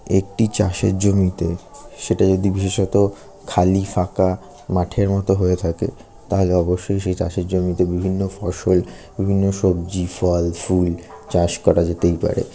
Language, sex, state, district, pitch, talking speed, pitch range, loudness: Bengali, male, West Bengal, North 24 Parganas, 95 Hz, 130 wpm, 90-100 Hz, -20 LUFS